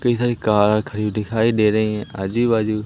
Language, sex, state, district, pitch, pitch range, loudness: Hindi, male, Madhya Pradesh, Umaria, 110 Hz, 105-115 Hz, -19 LUFS